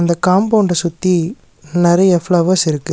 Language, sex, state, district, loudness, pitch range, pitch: Tamil, male, Tamil Nadu, Nilgiris, -14 LUFS, 170-185 Hz, 175 Hz